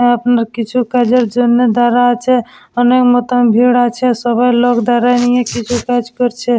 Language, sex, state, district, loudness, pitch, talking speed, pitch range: Bengali, female, West Bengal, Dakshin Dinajpur, -12 LUFS, 245 Hz, 175 wpm, 240-245 Hz